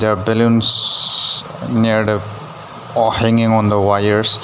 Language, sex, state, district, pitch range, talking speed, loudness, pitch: English, male, Nagaland, Dimapur, 105-115 Hz, 120 wpm, -14 LUFS, 110 Hz